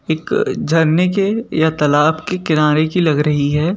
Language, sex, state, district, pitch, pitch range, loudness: Hindi, male, Madhya Pradesh, Bhopal, 160 Hz, 150-180 Hz, -15 LUFS